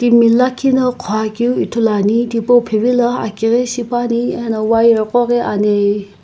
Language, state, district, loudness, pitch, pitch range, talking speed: Sumi, Nagaland, Kohima, -14 LUFS, 235 Hz, 220-245 Hz, 155 wpm